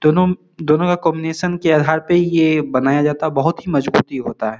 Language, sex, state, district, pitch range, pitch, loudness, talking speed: Hindi, male, Bihar, Samastipur, 145-170 Hz, 155 Hz, -17 LUFS, 210 wpm